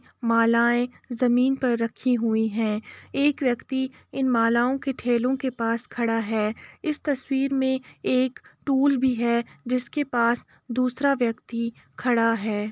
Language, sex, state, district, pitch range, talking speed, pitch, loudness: Hindi, female, Uttar Pradesh, Jalaun, 230-265 Hz, 135 wpm, 245 Hz, -24 LUFS